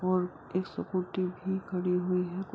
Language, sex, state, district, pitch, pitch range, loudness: Hindi, female, Bihar, Kishanganj, 185 Hz, 180-185 Hz, -32 LUFS